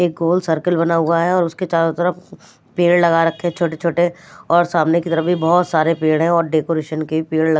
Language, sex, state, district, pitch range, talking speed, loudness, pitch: Hindi, female, Maharashtra, Mumbai Suburban, 160-175 Hz, 230 wpm, -17 LUFS, 170 Hz